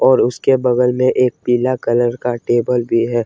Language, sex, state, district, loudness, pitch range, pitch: Hindi, male, Jharkhand, Ranchi, -16 LUFS, 120-130 Hz, 125 Hz